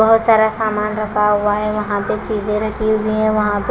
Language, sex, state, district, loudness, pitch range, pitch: Hindi, female, Punjab, Kapurthala, -17 LUFS, 210-220 Hz, 215 Hz